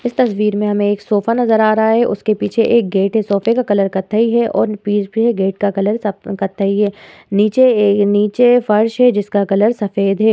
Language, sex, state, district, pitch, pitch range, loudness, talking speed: Hindi, female, Uttar Pradesh, Muzaffarnagar, 210 Hz, 205-230 Hz, -15 LUFS, 220 wpm